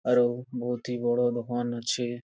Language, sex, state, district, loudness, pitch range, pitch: Bengali, male, West Bengal, Purulia, -28 LUFS, 120-125 Hz, 120 Hz